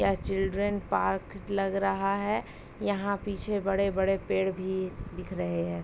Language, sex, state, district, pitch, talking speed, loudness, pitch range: Hindi, female, Uttar Pradesh, Ghazipur, 195 Hz, 145 wpm, -30 LUFS, 190-200 Hz